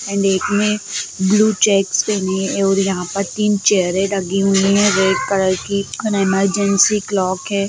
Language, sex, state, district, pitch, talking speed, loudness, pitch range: Hindi, female, Bihar, Darbhanga, 195 Hz, 150 wpm, -16 LUFS, 190-205 Hz